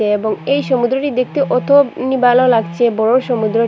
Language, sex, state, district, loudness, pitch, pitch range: Bengali, female, Assam, Hailakandi, -14 LUFS, 250 Hz, 225-265 Hz